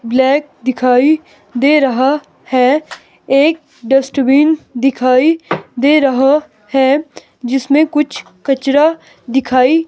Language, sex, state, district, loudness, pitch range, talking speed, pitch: Hindi, female, Himachal Pradesh, Shimla, -13 LUFS, 260-300 Hz, 90 wpm, 275 Hz